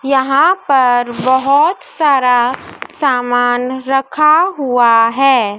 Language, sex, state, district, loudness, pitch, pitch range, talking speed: Hindi, female, Madhya Pradesh, Dhar, -12 LUFS, 260 Hz, 245-280 Hz, 85 wpm